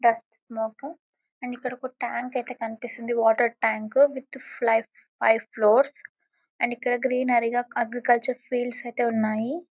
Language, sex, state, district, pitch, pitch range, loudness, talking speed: Telugu, female, Telangana, Karimnagar, 240 Hz, 230-255 Hz, -25 LUFS, 130 wpm